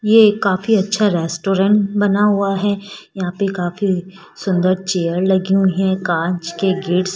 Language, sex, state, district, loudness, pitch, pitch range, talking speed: Hindi, female, Rajasthan, Jaipur, -17 LUFS, 190 Hz, 185-200 Hz, 160 wpm